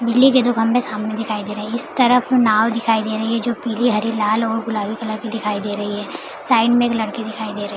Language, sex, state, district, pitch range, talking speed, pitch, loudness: Hindi, female, Bihar, Madhepura, 215-235 Hz, 280 wpm, 225 Hz, -18 LUFS